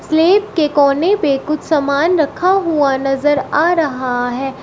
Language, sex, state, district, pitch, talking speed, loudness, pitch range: Hindi, female, Uttar Pradesh, Shamli, 295 Hz, 155 wpm, -15 LUFS, 275-330 Hz